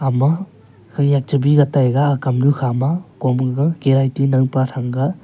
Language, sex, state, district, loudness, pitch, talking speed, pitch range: Wancho, male, Arunachal Pradesh, Longding, -17 LUFS, 135 Hz, 160 wpm, 130-145 Hz